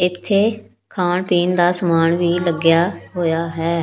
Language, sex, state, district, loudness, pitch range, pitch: Punjabi, female, Punjab, Pathankot, -18 LUFS, 165-180 Hz, 175 Hz